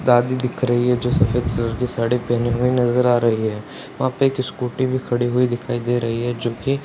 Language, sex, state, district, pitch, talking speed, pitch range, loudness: Hindi, male, Bihar, Purnia, 120 Hz, 245 wpm, 120-125 Hz, -20 LUFS